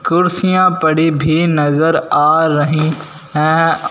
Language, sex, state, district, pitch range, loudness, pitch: Hindi, male, Punjab, Fazilka, 155-165 Hz, -13 LUFS, 160 Hz